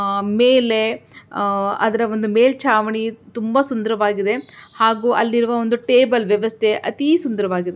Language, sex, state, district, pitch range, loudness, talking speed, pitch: Kannada, female, Karnataka, Belgaum, 215-240 Hz, -18 LUFS, 100 wpm, 225 Hz